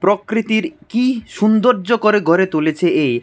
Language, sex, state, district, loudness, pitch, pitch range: Bengali, male, Tripura, West Tripura, -16 LUFS, 215 Hz, 175-235 Hz